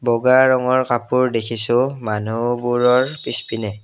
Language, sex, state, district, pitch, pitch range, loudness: Assamese, male, Assam, Kamrup Metropolitan, 120 Hz, 115-130 Hz, -18 LUFS